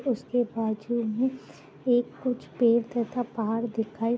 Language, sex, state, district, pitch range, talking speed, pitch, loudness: Hindi, female, Uttar Pradesh, Jalaun, 225-245 Hz, 145 wpm, 235 Hz, -28 LUFS